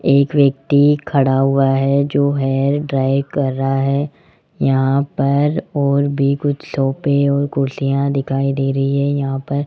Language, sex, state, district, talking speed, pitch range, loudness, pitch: Hindi, male, Rajasthan, Jaipur, 160 wpm, 135-140 Hz, -16 LUFS, 140 Hz